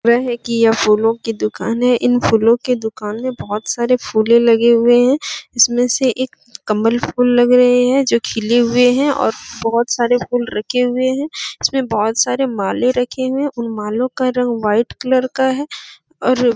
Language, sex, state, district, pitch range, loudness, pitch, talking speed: Hindi, female, Jharkhand, Sahebganj, 230-255 Hz, -16 LUFS, 245 Hz, 200 wpm